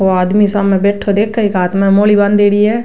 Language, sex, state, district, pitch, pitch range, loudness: Rajasthani, female, Rajasthan, Nagaur, 205 Hz, 195-210 Hz, -12 LUFS